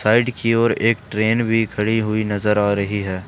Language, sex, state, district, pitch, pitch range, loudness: Hindi, male, Jharkhand, Ranchi, 110 Hz, 105-115 Hz, -19 LUFS